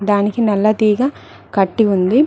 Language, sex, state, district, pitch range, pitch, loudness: Telugu, female, Telangana, Mahabubabad, 195-220 Hz, 210 Hz, -16 LUFS